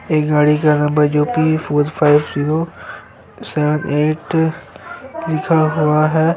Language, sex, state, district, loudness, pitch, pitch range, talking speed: Hindi, male, Chhattisgarh, Sukma, -16 LUFS, 155 Hz, 150-160 Hz, 130 wpm